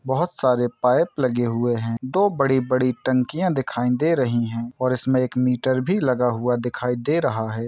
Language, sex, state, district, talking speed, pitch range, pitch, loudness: Hindi, male, Bihar, Saran, 185 wpm, 120-130 Hz, 125 Hz, -22 LUFS